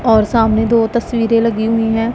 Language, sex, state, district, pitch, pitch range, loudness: Hindi, female, Punjab, Pathankot, 225 Hz, 225-230 Hz, -14 LUFS